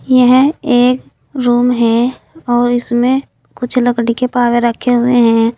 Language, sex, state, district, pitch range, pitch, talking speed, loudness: Hindi, female, Uttar Pradesh, Saharanpur, 240-250 Hz, 245 Hz, 140 wpm, -12 LUFS